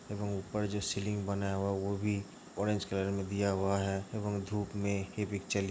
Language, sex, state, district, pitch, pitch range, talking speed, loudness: Hindi, male, Uttar Pradesh, Hamirpur, 100 Hz, 100-105 Hz, 190 wpm, -35 LUFS